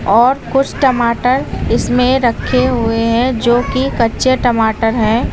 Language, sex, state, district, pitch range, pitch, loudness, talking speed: Hindi, female, Uttar Pradesh, Lucknow, 230-255 Hz, 245 Hz, -14 LUFS, 135 wpm